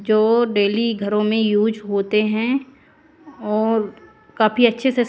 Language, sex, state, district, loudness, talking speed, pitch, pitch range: Hindi, female, Haryana, Jhajjar, -19 LUFS, 130 wpm, 220 Hz, 210-245 Hz